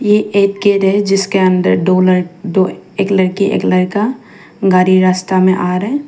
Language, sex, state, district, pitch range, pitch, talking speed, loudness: Hindi, female, Arunachal Pradesh, Papum Pare, 185-200 Hz, 190 Hz, 190 wpm, -13 LUFS